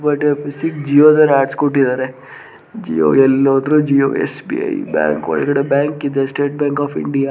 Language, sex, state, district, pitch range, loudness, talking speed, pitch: Kannada, male, Karnataka, Gulbarga, 135-145 Hz, -15 LUFS, 140 wpm, 140 Hz